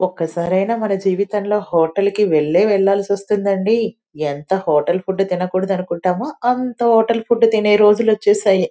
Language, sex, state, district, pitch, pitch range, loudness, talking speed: Telugu, female, Telangana, Nalgonda, 200 Hz, 185-215 Hz, -17 LUFS, 140 wpm